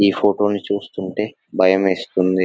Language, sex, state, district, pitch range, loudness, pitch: Telugu, male, Telangana, Nalgonda, 95-105 Hz, -19 LUFS, 100 Hz